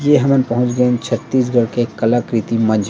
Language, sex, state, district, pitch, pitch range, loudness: Chhattisgarhi, male, Chhattisgarh, Rajnandgaon, 120 Hz, 115-130 Hz, -16 LUFS